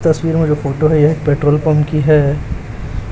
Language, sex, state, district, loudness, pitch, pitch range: Hindi, male, Chhattisgarh, Raipur, -14 LUFS, 150 Hz, 140-155 Hz